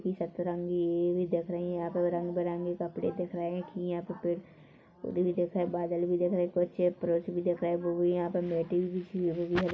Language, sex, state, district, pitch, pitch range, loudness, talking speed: Hindi, female, Chhattisgarh, Korba, 175 Hz, 175-180 Hz, -32 LUFS, 245 wpm